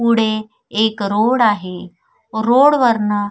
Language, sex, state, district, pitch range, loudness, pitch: Marathi, female, Maharashtra, Sindhudurg, 205-235 Hz, -16 LUFS, 220 Hz